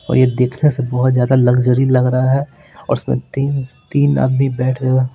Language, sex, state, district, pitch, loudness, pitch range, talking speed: Hindi, male, Bihar, Patna, 130 Hz, -15 LUFS, 125-135 Hz, 200 wpm